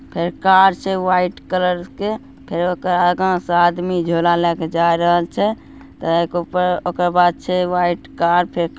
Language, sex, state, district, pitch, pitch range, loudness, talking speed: Hindi, female, Bihar, Begusarai, 175 Hz, 170-185 Hz, -17 LUFS, 155 wpm